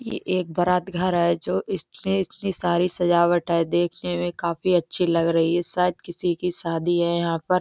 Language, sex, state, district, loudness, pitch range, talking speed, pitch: Hindi, female, Bihar, East Champaran, -22 LUFS, 170-180 Hz, 195 wpm, 175 Hz